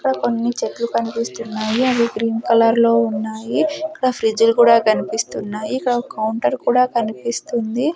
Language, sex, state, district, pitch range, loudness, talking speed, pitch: Telugu, female, Andhra Pradesh, Sri Satya Sai, 225-245 Hz, -18 LUFS, 135 wpm, 230 Hz